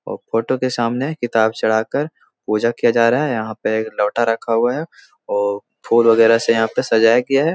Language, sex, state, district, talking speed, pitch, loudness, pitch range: Hindi, male, Bihar, Jahanabad, 215 wpm, 115 Hz, -17 LUFS, 110-125 Hz